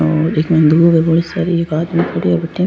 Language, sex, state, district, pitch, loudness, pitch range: Rajasthani, female, Rajasthan, Churu, 165 Hz, -14 LUFS, 155-170 Hz